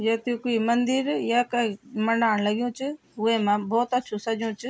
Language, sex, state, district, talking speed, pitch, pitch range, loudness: Garhwali, female, Uttarakhand, Tehri Garhwal, 180 wpm, 230 Hz, 225-245 Hz, -25 LUFS